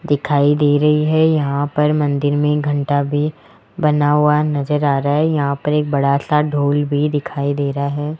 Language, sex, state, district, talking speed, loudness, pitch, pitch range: Hindi, male, Rajasthan, Jaipur, 200 wpm, -17 LUFS, 145 Hz, 145-150 Hz